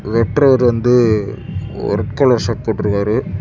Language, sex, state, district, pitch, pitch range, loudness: Tamil, male, Tamil Nadu, Kanyakumari, 115 Hz, 105-125 Hz, -15 LUFS